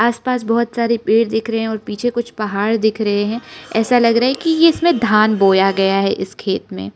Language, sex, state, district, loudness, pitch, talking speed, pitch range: Hindi, female, Arunachal Pradesh, Lower Dibang Valley, -16 LUFS, 225 Hz, 240 wpm, 210-235 Hz